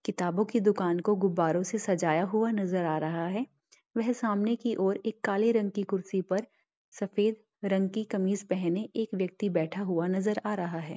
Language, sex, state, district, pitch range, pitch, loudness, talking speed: Hindi, female, Bihar, Darbhanga, 180-215 Hz, 200 Hz, -30 LUFS, 190 wpm